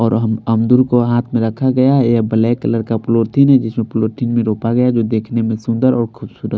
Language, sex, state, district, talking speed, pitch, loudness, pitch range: Hindi, male, Bihar, Patna, 230 wpm, 115 Hz, -15 LUFS, 115-125 Hz